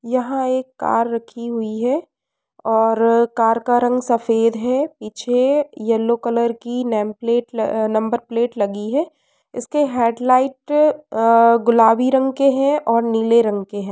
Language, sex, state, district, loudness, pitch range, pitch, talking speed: Hindi, female, Uttar Pradesh, Varanasi, -18 LUFS, 230-260 Hz, 235 Hz, 150 wpm